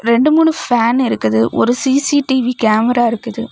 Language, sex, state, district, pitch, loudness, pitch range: Tamil, female, Tamil Nadu, Kanyakumari, 240 Hz, -14 LUFS, 225-265 Hz